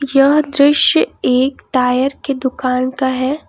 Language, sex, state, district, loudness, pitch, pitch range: Hindi, female, Jharkhand, Palamu, -14 LUFS, 265 Hz, 255-280 Hz